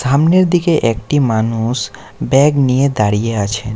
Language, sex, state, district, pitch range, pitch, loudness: Bengali, male, West Bengal, Alipurduar, 110-145 Hz, 130 Hz, -14 LUFS